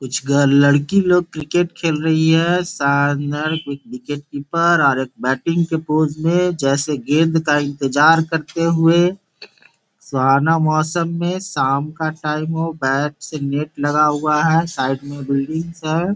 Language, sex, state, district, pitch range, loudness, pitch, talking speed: Hindi, male, Bihar, Gopalganj, 140-165 Hz, -17 LUFS, 155 Hz, 150 wpm